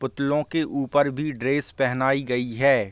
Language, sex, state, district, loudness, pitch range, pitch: Hindi, male, Uttar Pradesh, Deoria, -23 LUFS, 130-145 Hz, 140 Hz